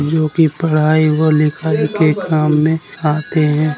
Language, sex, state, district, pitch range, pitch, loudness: Bundeli, male, Uttar Pradesh, Jalaun, 150-160 Hz, 155 Hz, -14 LUFS